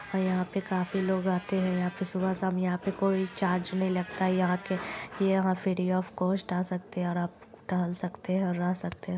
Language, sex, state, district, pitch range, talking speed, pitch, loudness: Hindi, female, Bihar, Lakhisarai, 180-190 Hz, 220 wpm, 185 Hz, -30 LUFS